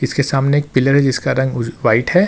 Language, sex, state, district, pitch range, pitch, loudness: Hindi, male, Jharkhand, Ranchi, 130-140 Hz, 135 Hz, -16 LUFS